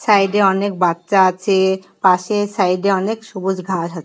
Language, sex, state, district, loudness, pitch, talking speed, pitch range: Bengali, female, West Bengal, Kolkata, -17 LUFS, 190 Hz, 165 wpm, 185-200 Hz